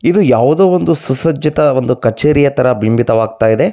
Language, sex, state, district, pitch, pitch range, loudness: Kannada, male, Karnataka, Bellary, 130 Hz, 115-150 Hz, -12 LUFS